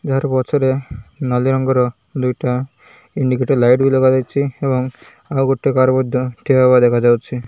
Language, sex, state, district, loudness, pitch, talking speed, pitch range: Odia, male, Odisha, Malkangiri, -16 LUFS, 130 Hz, 110 wpm, 125-135 Hz